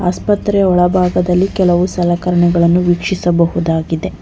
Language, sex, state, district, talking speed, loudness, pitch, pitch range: Kannada, female, Karnataka, Bangalore, 70 wpm, -13 LUFS, 180 Hz, 175-185 Hz